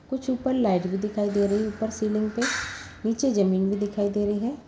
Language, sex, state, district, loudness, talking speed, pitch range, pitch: Hindi, female, Uttar Pradesh, Jalaun, -26 LUFS, 220 wpm, 205-235 Hz, 210 Hz